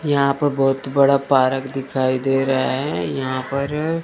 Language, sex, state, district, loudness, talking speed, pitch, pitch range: Hindi, male, Chandigarh, Chandigarh, -19 LUFS, 165 wpm, 135 Hz, 135-140 Hz